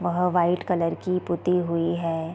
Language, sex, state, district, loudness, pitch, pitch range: Hindi, female, Chhattisgarh, Raigarh, -24 LUFS, 175 Hz, 165-180 Hz